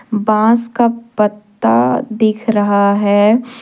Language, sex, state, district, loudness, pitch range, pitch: Hindi, female, Jharkhand, Deoghar, -14 LUFS, 205-230 Hz, 215 Hz